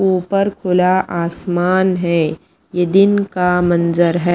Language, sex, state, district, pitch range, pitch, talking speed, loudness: Hindi, female, Punjab, Pathankot, 175-190 Hz, 180 Hz, 125 wpm, -16 LUFS